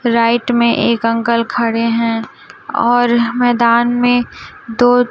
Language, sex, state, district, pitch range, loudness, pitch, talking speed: Hindi, female, Chhattisgarh, Raipur, 230-245 Hz, -14 LUFS, 235 Hz, 115 wpm